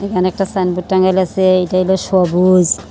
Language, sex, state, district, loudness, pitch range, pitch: Bengali, female, Tripura, Unakoti, -14 LUFS, 185-190 Hz, 185 Hz